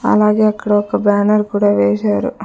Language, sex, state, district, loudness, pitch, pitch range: Telugu, female, Andhra Pradesh, Sri Satya Sai, -14 LUFS, 205 Hz, 180-210 Hz